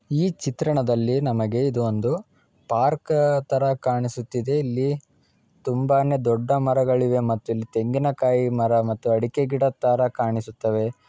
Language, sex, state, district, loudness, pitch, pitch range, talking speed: Kannada, male, Karnataka, Dharwad, -23 LUFS, 125 Hz, 115-140 Hz, 120 wpm